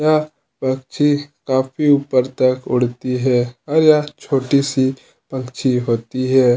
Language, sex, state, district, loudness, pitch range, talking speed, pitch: Hindi, male, Chhattisgarh, Kabirdham, -18 LUFS, 125-145 Hz, 130 wpm, 130 Hz